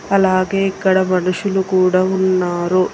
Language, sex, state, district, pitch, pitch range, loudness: Telugu, female, Telangana, Hyderabad, 185 Hz, 185-190 Hz, -16 LUFS